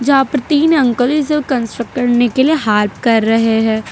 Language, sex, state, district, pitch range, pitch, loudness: Hindi, female, Gujarat, Valsad, 225-280 Hz, 245 Hz, -14 LUFS